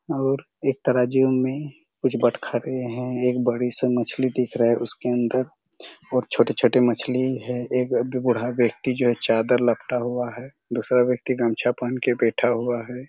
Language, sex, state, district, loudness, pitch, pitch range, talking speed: Hindi, male, Chhattisgarh, Raigarh, -23 LUFS, 125 Hz, 120-130 Hz, 170 wpm